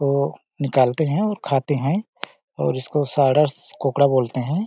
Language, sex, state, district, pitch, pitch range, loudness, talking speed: Hindi, male, Chhattisgarh, Balrampur, 140 Hz, 135-155 Hz, -21 LUFS, 165 wpm